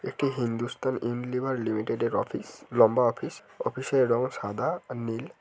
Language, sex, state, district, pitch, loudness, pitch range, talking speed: Bengali, male, West Bengal, Kolkata, 120 Hz, -28 LUFS, 115-130 Hz, 165 wpm